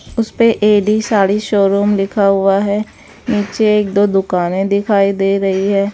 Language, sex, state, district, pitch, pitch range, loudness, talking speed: Hindi, female, Bihar, West Champaran, 200 Hz, 195-210 Hz, -14 LUFS, 160 wpm